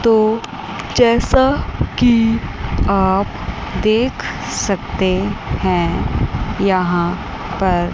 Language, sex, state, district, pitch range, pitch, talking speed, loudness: Hindi, female, Chandigarh, Chandigarh, 185-230 Hz, 200 Hz, 70 wpm, -17 LUFS